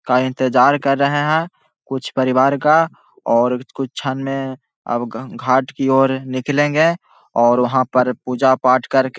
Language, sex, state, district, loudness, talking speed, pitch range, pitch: Hindi, male, Bihar, Jahanabad, -17 LUFS, 155 wpm, 125-140 Hz, 130 Hz